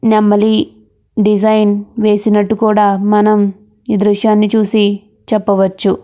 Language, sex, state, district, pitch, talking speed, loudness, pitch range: Telugu, female, Andhra Pradesh, Krishna, 210 Hz, 110 wpm, -12 LUFS, 205-215 Hz